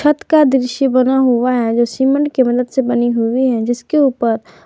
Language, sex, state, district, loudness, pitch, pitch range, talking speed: Hindi, female, Jharkhand, Garhwa, -14 LUFS, 255 Hz, 240-270 Hz, 220 wpm